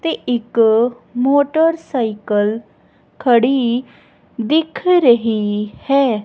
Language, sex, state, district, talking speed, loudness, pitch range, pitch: Punjabi, female, Punjab, Kapurthala, 65 wpm, -16 LUFS, 225-280 Hz, 240 Hz